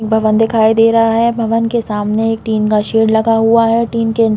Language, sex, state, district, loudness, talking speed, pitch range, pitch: Hindi, female, Chhattisgarh, Balrampur, -13 LUFS, 235 wpm, 220-230 Hz, 225 Hz